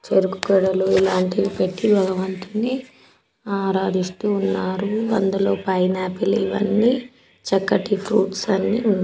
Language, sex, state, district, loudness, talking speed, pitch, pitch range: Telugu, female, Telangana, Nalgonda, -21 LUFS, 105 wpm, 195 Hz, 190-210 Hz